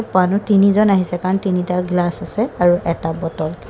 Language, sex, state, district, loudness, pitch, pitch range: Assamese, female, Assam, Kamrup Metropolitan, -17 LUFS, 180 Hz, 175-200 Hz